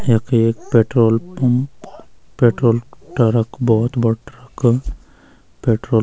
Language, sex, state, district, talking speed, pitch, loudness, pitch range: Garhwali, male, Uttarakhand, Uttarkashi, 110 wpm, 115 Hz, -17 LUFS, 115-125 Hz